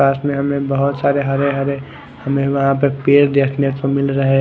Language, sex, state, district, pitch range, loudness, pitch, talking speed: Hindi, male, Odisha, Khordha, 135-140 Hz, -16 LUFS, 140 Hz, 205 wpm